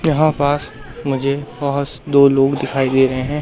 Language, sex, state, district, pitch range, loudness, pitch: Hindi, male, Madhya Pradesh, Katni, 135-145 Hz, -17 LUFS, 140 Hz